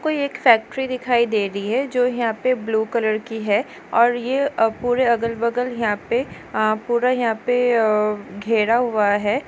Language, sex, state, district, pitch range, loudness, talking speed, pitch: Hindi, female, Goa, North and South Goa, 215-245 Hz, -20 LUFS, 170 wpm, 235 Hz